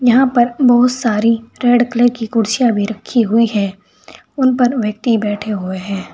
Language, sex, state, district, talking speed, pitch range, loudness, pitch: Hindi, female, Uttar Pradesh, Saharanpur, 175 wpm, 210-245 Hz, -15 LUFS, 230 Hz